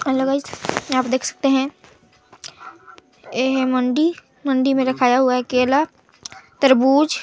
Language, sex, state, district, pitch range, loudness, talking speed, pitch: Hindi, female, Chhattisgarh, Balrampur, 255-275 Hz, -19 LUFS, 140 wpm, 265 Hz